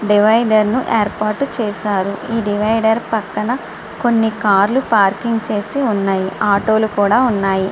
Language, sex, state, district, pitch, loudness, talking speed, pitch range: Telugu, female, Andhra Pradesh, Srikakulam, 215 Hz, -16 LUFS, 130 wpm, 205-230 Hz